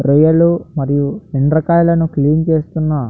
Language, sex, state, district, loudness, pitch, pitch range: Telugu, male, Andhra Pradesh, Anantapur, -14 LUFS, 155 Hz, 145-165 Hz